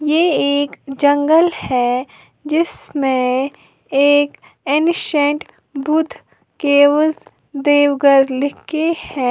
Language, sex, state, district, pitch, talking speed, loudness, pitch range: Hindi, female, Uttar Pradesh, Lalitpur, 285 Hz, 85 wpm, -16 LUFS, 275-305 Hz